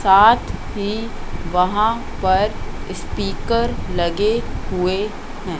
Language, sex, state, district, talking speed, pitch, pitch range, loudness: Hindi, female, Madhya Pradesh, Katni, 85 wpm, 205 Hz, 185-225 Hz, -20 LUFS